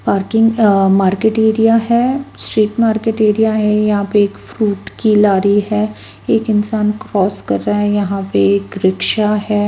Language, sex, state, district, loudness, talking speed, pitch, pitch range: Hindi, female, Bihar, West Champaran, -14 LUFS, 165 wpm, 210 Hz, 200-220 Hz